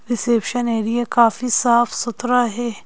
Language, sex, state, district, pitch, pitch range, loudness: Hindi, female, Madhya Pradesh, Bhopal, 240 Hz, 235-245 Hz, -18 LUFS